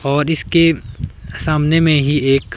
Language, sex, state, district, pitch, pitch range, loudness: Hindi, male, Himachal Pradesh, Shimla, 150 Hz, 135-160 Hz, -15 LUFS